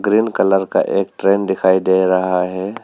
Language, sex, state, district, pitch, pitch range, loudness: Hindi, male, Arunachal Pradesh, Papum Pare, 95 Hz, 95-100 Hz, -16 LUFS